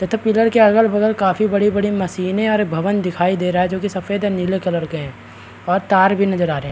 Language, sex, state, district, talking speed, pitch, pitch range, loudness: Hindi, male, Bihar, Kishanganj, 250 wpm, 190 Hz, 180-205 Hz, -17 LUFS